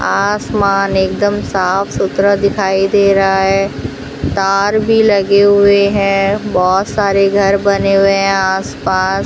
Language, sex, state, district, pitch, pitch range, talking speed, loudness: Hindi, female, Rajasthan, Bikaner, 195 Hz, 195-200 Hz, 130 wpm, -12 LUFS